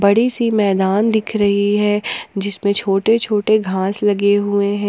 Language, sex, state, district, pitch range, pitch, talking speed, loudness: Hindi, female, Jharkhand, Ranchi, 200-215 Hz, 205 Hz, 160 wpm, -16 LUFS